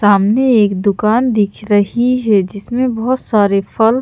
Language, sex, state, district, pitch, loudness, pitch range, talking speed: Hindi, female, Madhya Pradesh, Bhopal, 215 Hz, -14 LUFS, 200-245 Hz, 150 wpm